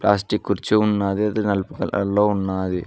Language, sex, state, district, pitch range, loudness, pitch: Telugu, male, Telangana, Mahabubabad, 95-105 Hz, -21 LUFS, 100 Hz